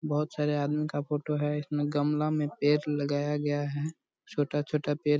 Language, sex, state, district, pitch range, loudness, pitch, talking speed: Hindi, male, Bihar, Purnia, 145-150 Hz, -30 LUFS, 150 Hz, 185 wpm